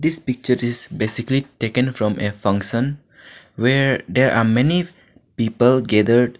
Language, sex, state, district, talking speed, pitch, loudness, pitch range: English, male, Arunachal Pradesh, Lower Dibang Valley, 130 wpm, 120 Hz, -18 LUFS, 115-130 Hz